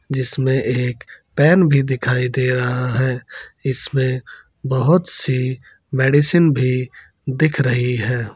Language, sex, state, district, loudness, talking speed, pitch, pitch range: Hindi, male, Bihar, Gaya, -18 LUFS, 115 wpm, 130 Hz, 125-140 Hz